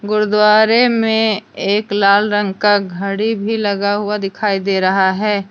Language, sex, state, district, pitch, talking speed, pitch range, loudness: Hindi, female, Jharkhand, Deoghar, 205 Hz, 155 wpm, 200-215 Hz, -15 LUFS